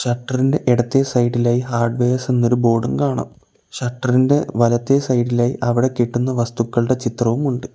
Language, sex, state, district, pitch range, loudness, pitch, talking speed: Malayalam, male, Kerala, Kollam, 120-130 Hz, -18 LUFS, 120 Hz, 130 wpm